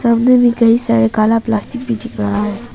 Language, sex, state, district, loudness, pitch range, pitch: Hindi, female, Arunachal Pradesh, Papum Pare, -14 LUFS, 210-240 Hz, 230 Hz